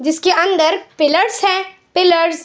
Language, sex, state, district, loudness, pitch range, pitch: Hindi, female, Bihar, Saharsa, -15 LUFS, 325-380 Hz, 350 Hz